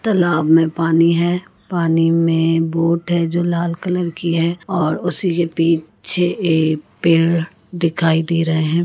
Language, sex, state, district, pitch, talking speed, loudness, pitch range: Hindi, female, Goa, North and South Goa, 170 Hz, 155 wpm, -17 LUFS, 165-175 Hz